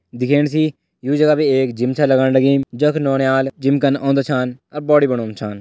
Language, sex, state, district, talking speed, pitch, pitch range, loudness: Garhwali, male, Uttarakhand, Tehri Garhwal, 215 wpm, 135 Hz, 130-145 Hz, -16 LUFS